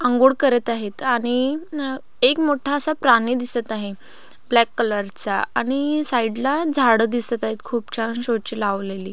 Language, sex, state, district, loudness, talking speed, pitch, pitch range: Marathi, female, Maharashtra, Pune, -20 LUFS, 145 wpm, 240 Hz, 225-270 Hz